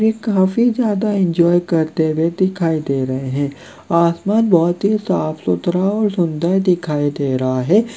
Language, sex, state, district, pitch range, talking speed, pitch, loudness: Hindi, male, Chhattisgarh, Korba, 155-200 Hz, 160 wpm, 175 Hz, -17 LUFS